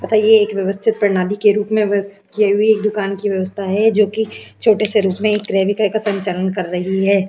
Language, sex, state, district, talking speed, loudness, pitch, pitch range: Hindi, female, Uttar Pradesh, Hamirpur, 215 wpm, -16 LUFS, 205 Hz, 195-215 Hz